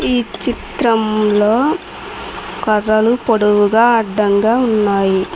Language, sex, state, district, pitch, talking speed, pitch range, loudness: Telugu, female, Telangana, Mahabubabad, 215 Hz, 65 wpm, 210-235 Hz, -14 LUFS